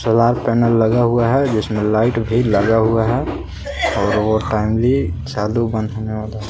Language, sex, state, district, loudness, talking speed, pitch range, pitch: Hindi, male, Jharkhand, Palamu, -17 LUFS, 120 wpm, 110-115 Hz, 110 Hz